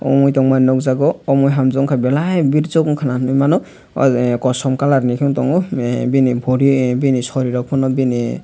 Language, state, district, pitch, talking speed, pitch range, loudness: Kokborok, Tripura, Dhalai, 135 Hz, 170 wpm, 130-140 Hz, -15 LUFS